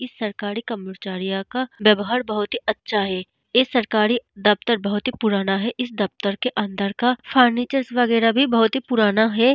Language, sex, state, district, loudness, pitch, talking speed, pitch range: Hindi, female, Bihar, Vaishali, -21 LUFS, 225 Hz, 175 wpm, 205-245 Hz